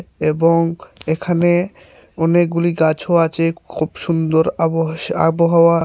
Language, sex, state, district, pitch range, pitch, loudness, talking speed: Bengali, male, Tripura, Unakoti, 160-170 Hz, 165 Hz, -17 LUFS, 90 wpm